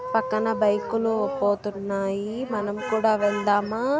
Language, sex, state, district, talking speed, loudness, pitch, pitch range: Telugu, female, Andhra Pradesh, Guntur, 75 wpm, -24 LUFS, 210 Hz, 205-225 Hz